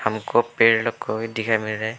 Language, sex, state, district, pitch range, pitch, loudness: Hindi, male, Arunachal Pradesh, Lower Dibang Valley, 110-115 Hz, 110 Hz, -21 LUFS